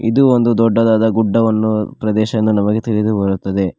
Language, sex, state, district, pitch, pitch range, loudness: Kannada, male, Karnataka, Koppal, 110 Hz, 105-115 Hz, -15 LUFS